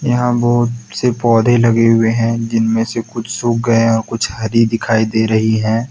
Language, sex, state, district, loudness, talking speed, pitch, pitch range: Hindi, male, Jharkhand, Deoghar, -14 LUFS, 205 wpm, 115 Hz, 110-120 Hz